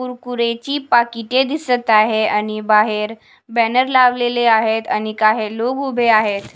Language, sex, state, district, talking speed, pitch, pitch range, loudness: Marathi, female, Maharashtra, Washim, 130 wpm, 230 Hz, 215-245 Hz, -16 LUFS